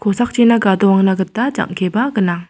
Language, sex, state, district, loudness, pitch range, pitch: Garo, female, Meghalaya, South Garo Hills, -15 LUFS, 190-235 Hz, 200 Hz